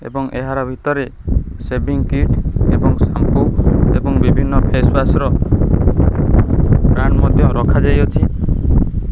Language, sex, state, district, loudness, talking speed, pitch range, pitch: Odia, male, Odisha, Khordha, -15 LUFS, 85 wpm, 130-135 Hz, 135 Hz